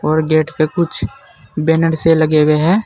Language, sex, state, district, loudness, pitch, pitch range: Hindi, male, Uttar Pradesh, Saharanpur, -14 LUFS, 155 Hz, 155-165 Hz